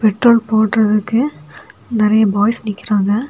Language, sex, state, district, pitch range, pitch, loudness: Tamil, female, Tamil Nadu, Kanyakumari, 210-230 Hz, 215 Hz, -15 LUFS